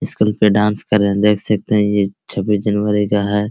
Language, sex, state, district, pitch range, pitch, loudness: Hindi, male, Bihar, Araria, 100-105 Hz, 105 Hz, -16 LUFS